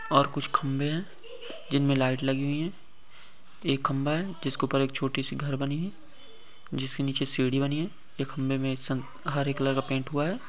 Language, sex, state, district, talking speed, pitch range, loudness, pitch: Hindi, male, Maharashtra, Solapur, 200 wpm, 135-150 Hz, -29 LUFS, 140 Hz